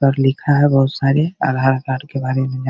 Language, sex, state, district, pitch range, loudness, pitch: Hindi, male, Bihar, Begusarai, 130-140 Hz, -17 LUFS, 135 Hz